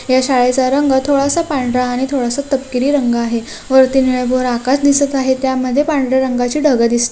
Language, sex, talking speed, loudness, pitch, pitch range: Marathi, female, 175 wpm, -14 LUFS, 260 Hz, 250-275 Hz